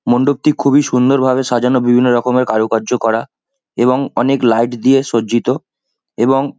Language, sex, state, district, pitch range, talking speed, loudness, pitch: Bengali, male, West Bengal, Kolkata, 120-135 Hz, 135 wpm, -14 LUFS, 125 Hz